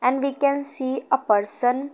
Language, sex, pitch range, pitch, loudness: English, female, 250-280 Hz, 265 Hz, -16 LUFS